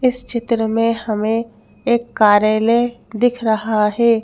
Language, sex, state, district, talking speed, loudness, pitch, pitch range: Hindi, female, Madhya Pradesh, Bhopal, 130 wpm, -17 LUFS, 230 Hz, 220-235 Hz